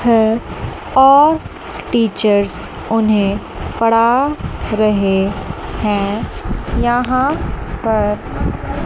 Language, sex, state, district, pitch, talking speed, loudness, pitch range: Hindi, female, Chandigarh, Chandigarh, 220 Hz, 60 wpm, -16 LUFS, 205-240 Hz